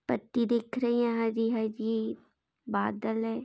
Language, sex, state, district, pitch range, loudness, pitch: Hindi, female, Chhattisgarh, Kabirdham, 225-235 Hz, -30 LUFS, 225 Hz